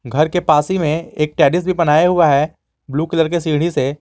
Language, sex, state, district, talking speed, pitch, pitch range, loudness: Hindi, male, Jharkhand, Garhwa, 255 wpm, 160 Hz, 150-175 Hz, -16 LUFS